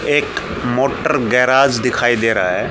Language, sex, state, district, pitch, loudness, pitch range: Hindi, male, Haryana, Charkhi Dadri, 125 Hz, -15 LUFS, 120-135 Hz